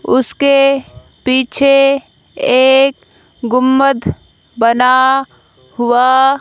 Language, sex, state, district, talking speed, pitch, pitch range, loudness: Hindi, female, Haryana, Jhajjar, 55 wpm, 265 Hz, 250-275 Hz, -12 LUFS